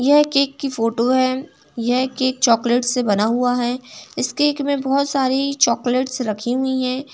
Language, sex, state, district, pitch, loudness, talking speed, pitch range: Hindi, female, Uttar Pradesh, Etah, 255 Hz, -19 LUFS, 175 wpm, 245-275 Hz